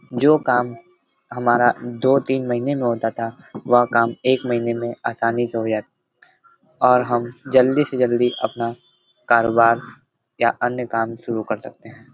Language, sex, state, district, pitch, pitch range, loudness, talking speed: Hindi, male, Uttar Pradesh, Varanasi, 120 Hz, 115-125 Hz, -20 LUFS, 165 wpm